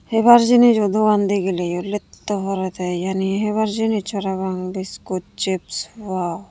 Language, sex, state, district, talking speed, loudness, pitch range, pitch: Chakma, female, Tripura, Unakoti, 120 wpm, -20 LUFS, 185-215 Hz, 195 Hz